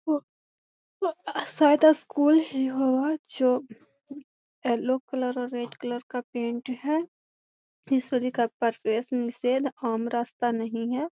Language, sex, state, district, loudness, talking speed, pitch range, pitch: Magahi, female, Bihar, Gaya, -26 LUFS, 75 wpm, 240-290 Hz, 255 Hz